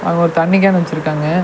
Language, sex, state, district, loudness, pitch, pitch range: Tamil, male, Tamil Nadu, Nilgiris, -14 LUFS, 170 Hz, 155-180 Hz